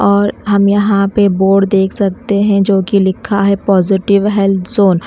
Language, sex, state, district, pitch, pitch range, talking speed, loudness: Hindi, female, Chhattisgarh, Raipur, 200 Hz, 195-200 Hz, 190 wpm, -12 LUFS